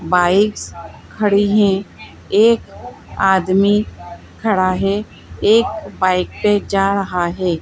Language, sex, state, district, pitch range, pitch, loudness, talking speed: Hindi, female, Madhya Pradesh, Bhopal, 185-210 Hz, 195 Hz, -16 LUFS, 100 wpm